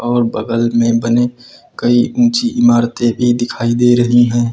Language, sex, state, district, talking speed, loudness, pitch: Hindi, male, Uttar Pradesh, Lucknow, 160 wpm, -13 LUFS, 120 Hz